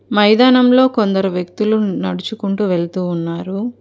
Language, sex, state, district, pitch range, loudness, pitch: Telugu, female, Telangana, Hyderabad, 180-220 Hz, -15 LUFS, 205 Hz